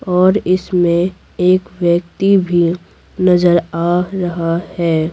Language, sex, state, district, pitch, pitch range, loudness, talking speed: Hindi, female, Bihar, Patna, 180 Hz, 170-185 Hz, -15 LUFS, 105 wpm